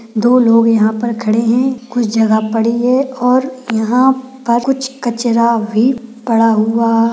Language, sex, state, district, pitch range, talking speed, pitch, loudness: Hindi, female, Bihar, Purnia, 225-250 Hz, 150 wpm, 235 Hz, -13 LUFS